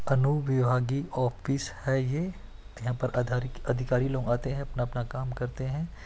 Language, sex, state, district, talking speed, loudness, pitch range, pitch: Hindi, male, Chhattisgarh, Bastar, 160 wpm, -30 LUFS, 125-135 Hz, 130 Hz